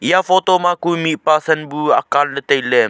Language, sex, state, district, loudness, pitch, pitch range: Wancho, male, Arunachal Pradesh, Longding, -15 LUFS, 155 Hz, 145-175 Hz